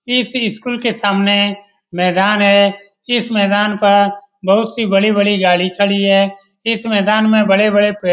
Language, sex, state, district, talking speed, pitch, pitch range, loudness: Hindi, male, Bihar, Lakhisarai, 155 wpm, 205 Hz, 200-215 Hz, -14 LUFS